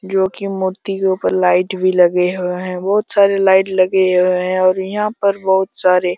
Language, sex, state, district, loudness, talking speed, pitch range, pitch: Hindi, male, Jharkhand, Jamtara, -15 LUFS, 185 wpm, 185-195 Hz, 190 Hz